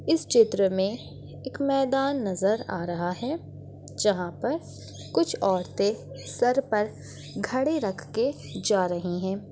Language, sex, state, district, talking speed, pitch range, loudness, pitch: Hindi, female, Chhattisgarh, Bastar, 130 wpm, 185-270 Hz, -27 LUFS, 205 Hz